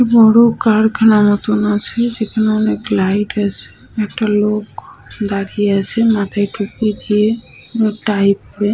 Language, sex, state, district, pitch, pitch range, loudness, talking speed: Bengali, female, West Bengal, Malda, 210 Hz, 205-220 Hz, -15 LUFS, 125 wpm